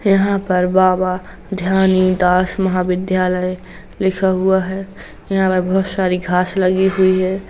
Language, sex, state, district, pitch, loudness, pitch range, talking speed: Hindi, female, Uttar Pradesh, Hamirpur, 185 Hz, -16 LUFS, 185-190 Hz, 130 wpm